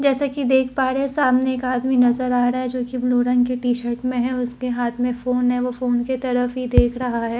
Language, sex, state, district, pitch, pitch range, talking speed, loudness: Hindi, female, Bihar, Katihar, 250 Hz, 245-255 Hz, 310 wpm, -20 LUFS